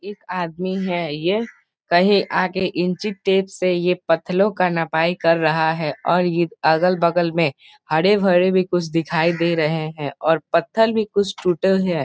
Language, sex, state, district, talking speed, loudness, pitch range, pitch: Hindi, male, Bihar, Gopalganj, 165 wpm, -19 LUFS, 165-190 Hz, 175 Hz